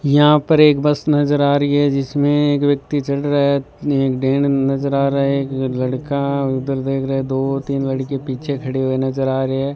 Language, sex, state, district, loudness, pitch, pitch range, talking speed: Hindi, male, Rajasthan, Bikaner, -17 LUFS, 140 Hz, 135-145 Hz, 210 wpm